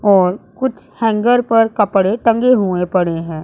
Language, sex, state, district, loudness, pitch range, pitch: Hindi, female, Punjab, Pathankot, -15 LUFS, 185-230 Hz, 210 Hz